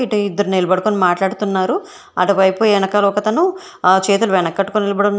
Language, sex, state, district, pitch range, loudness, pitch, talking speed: Telugu, female, Telangana, Hyderabad, 190-215 Hz, -16 LUFS, 205 Hz, 140 wpm